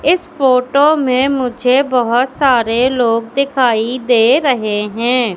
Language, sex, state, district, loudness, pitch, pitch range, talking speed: Hindi, female, Madhya Pradesh, Katni, -13 LUFS, 250 Hz, 235-270 Hz, 125 wpm